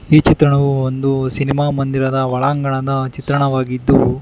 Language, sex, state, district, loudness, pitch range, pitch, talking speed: Kannada, male, Karnataka, Bangalore, -16 LUFS, 130-140 Hz, 135 Hz, 100 wpm